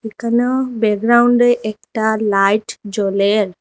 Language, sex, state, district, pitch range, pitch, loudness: Bengali, female, Assam, Hailakandi, 205-240 Hz, 220 Hz, -16 LUFS